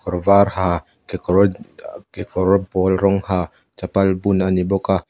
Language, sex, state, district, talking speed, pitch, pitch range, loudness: Mizo, male, Mizoram, Aizawl, 165 wpm, 95 Hz, 90-100 Hz, -18 LUFS